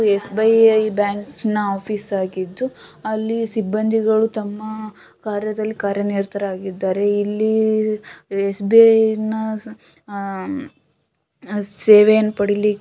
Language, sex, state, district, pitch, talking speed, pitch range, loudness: Kannada, female, Karnataka, Shimoga, 210 Hz, 70 wpm, 200-220 Hz, -18 LUFS